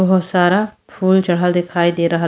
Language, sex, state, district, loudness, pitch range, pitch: Bhojpuri, female, Uttar Pradesh, Deoria, -16 LUFS, 175-190 Hz, 180 Hz